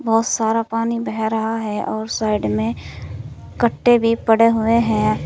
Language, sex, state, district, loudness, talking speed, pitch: Hindi, female, Uttar Pradesh, Saharanpur, -18 LUFS, 160 wpm, 220 Hz